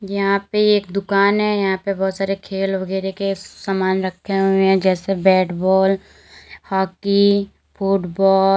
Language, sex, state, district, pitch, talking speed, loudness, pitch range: Hindi, female, Uttar Pradesh, Lalitpur, 195 Hz, 160 wpm, -18 LUFS, 190-200 Hz